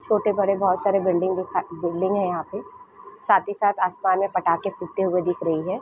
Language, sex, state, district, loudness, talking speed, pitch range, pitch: Hindi, female, Jharkhand, Sahebganj, -23 LUFS, 215 wpm, 180-200 Hz, 185 Hz